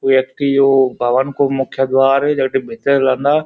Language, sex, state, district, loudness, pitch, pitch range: Garhwali, male, Uttarakhand, Uttarkashi, -15 LUFS, 135 Hz, 130-140 Hz